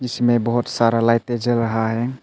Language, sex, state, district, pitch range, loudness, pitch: Hindi, male, Arunachal Pradesh, Papum Pare, 115-120 Hz, -19 LUFS, 120 Hz